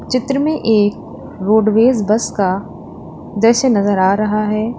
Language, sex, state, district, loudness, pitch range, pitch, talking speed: Hindi, female, Uttar Pradesh, Lalitpur, -15 LUFS, 205-235 Hz, 215 Hz, 140 wpm